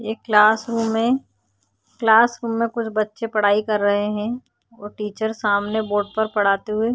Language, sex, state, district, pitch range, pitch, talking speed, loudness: Hindi, female, Maharashtra, Chandrapur, 205-225 Hz, 215 Hz, 165 wpm, -20 LUFS